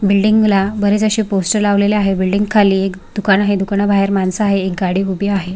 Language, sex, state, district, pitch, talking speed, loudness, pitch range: Marathi, female, Maharashtra, Sindhudurg, 200 Hz, 205 wpm, -15 LUFS, 195-205 Hz